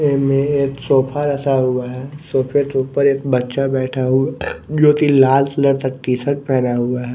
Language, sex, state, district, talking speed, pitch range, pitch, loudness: Hindi, male, Odisha, Nuapada, 195 wpm, 130-140 Hz, 135 Hz, -17 LUFS